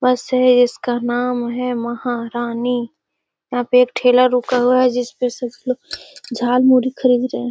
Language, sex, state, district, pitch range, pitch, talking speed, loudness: Magahi, female, Bihar, Gaya, 240-250 Hz, 245 Hz, 160 wpm, -17 LUFS